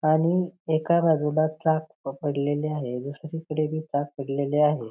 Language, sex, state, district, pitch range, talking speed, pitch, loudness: Marathi, female, Maharashtra, Pune, 145-160 Hz, 145 wpm, 155 Hz, -26 LUFS